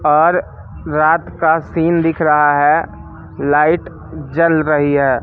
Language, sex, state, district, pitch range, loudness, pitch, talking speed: Hindi, male, Madhya Pradesh, Katni, 145-165 Hz, -14 LUFS, 155 Hz, 125 wpm